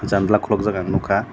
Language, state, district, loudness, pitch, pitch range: Kokborok, Tripura, Dhalai, -20 LUFS, 100 Hz, 95-105 Hz